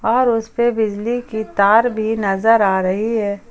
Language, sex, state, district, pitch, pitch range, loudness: Hindi, female, Jharkhand, Ranchi, 220 Hz, 205-230 Hz, -17 LUFS